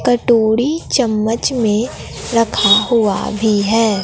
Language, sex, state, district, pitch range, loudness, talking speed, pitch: Hindi, female, Bihar, Katihar, 215-240 Hz, -15 LUFS, 105 wpm, 225 Hz